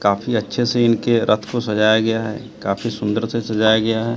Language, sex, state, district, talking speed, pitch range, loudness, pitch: Hindi, male, Bihar, Katihar, 215 wpm, 105-115 Hz, -18 LUFS, 110 Hz